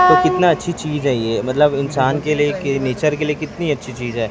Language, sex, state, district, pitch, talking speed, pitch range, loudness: Hindi, male, Chhattisgarh, Raipur, 150 Hz, 225 wpm, 130-155 Hz, -18 LUFS